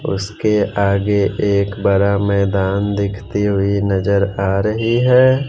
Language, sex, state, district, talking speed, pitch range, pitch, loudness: Hindi, male, Bihar, West Champaran, 120 wpm, 100-105 Hz, 100 Hz, -16 LUFS